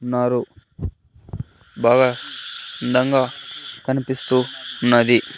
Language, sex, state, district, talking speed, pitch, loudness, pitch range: Telugu, male, Andhra Pradesh, Sri Satya Sai, 55 wpm, 125 Hz, -20 LUFS, 120-130 Hz